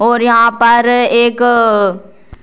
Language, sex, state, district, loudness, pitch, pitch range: Hindi, female, Bihar, Purnia, -10 LUFS, 235 Hz, 215-240 Hz